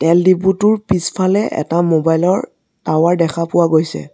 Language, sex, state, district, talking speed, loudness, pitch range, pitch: Assamese, male, Assam, Sonitpur, 145 wpm, -15 LUFS, 165-185 Hz, 170 Hz